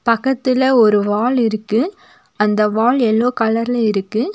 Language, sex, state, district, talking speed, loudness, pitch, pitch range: Tamil, female, Tamil Nadu, Nilgiris, 125 wpm, -16 LUFS, 230 Hz, 215-250 Hz